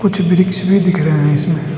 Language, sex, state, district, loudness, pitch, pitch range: Hindi, male, Arunachal Pradesh, Lower Dibang Valley, -13 LUFS, 180 Hz, 155-190 Hz